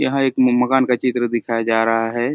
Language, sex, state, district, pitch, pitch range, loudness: Hindi, male, Chhattisgarh, Bastar, 120 Hz, 115-130 Hz, -18 LUFS